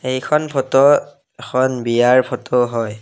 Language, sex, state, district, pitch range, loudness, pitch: Assamese, male, Assam, Kamrup Metropolitan, 125-140 Hz, -16 LUFS, 130 Hz